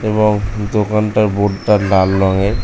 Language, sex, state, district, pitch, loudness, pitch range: Bengali, male, West Bengal, North 24 Parganas, 105 Hz, -15 LUFS, 100-105 Hz